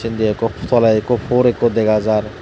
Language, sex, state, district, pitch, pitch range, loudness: Chakma, male, Tripura, Dhalai, 110 Hz, 110-120 Hz, -16 LUFS